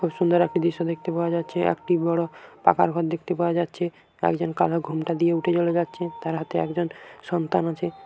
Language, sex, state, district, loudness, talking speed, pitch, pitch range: Bengali, male, West Bengal, Jhargram, -24 LUFS, 195 wpm, 170 Hz, 165-175 Hz